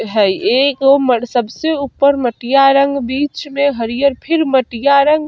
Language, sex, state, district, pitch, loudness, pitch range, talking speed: Bajjika, female, Bihar, Vaishali, 275 Hz, -14 LUFS, 245-280 Hz, 160 wpm